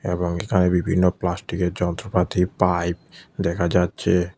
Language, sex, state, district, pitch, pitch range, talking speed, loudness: Bengali, male, Tripura, West Tripura, 90 Hz, 85-90 Hz, 110 wpm, -22 LUFS